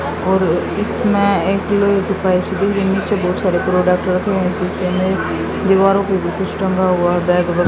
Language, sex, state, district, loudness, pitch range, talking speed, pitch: Hindi, female, Haryana, Jhajjar, -16 LUFS, 180-200 Hz, 150 wpm, 190 Hz